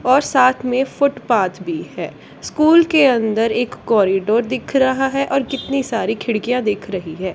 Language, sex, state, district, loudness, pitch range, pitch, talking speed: Hindi, female, Punjab, Kapurthala, -17 LUFS, 215-270 Hz, 250 Hz, 170 wpm